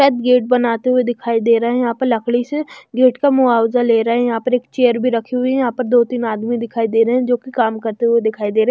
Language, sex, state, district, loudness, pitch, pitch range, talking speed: Hindi, female, Chhattisgarh, Raipur, -16 LUFS, 240 Hz, 230-250 Hz, 295 wpm